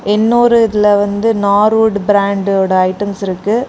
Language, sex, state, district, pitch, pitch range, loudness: Tamil, female, Tamil Nadu, Kanyakumari, 205 Hz, 200-220 Hz, -12 LUFS